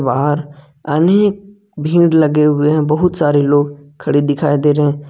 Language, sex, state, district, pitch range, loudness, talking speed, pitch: Hindi, male, Jharkhand, Ranchi, 145-160 Hz, -14 LUFS, 155 wpm, 150 Hz